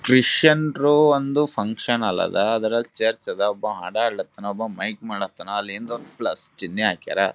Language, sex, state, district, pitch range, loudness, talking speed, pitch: Kannada, male, Karnataka, Gulbarga, 110-145 Hz, -22 LUFS, 170 wpm, 115 Hz